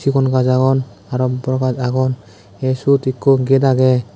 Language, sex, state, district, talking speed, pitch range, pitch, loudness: Chakma, male, Tripura, West Tripura, 175 wpm, 125-130 Hz, 130 Hz, -16 LUFS